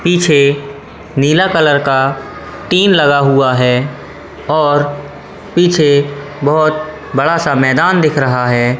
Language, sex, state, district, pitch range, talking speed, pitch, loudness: Hindi, male, Madhya Pradesh, Katni, 135-155 Hz, 115 wpm, 145 Hz, -12 LUFS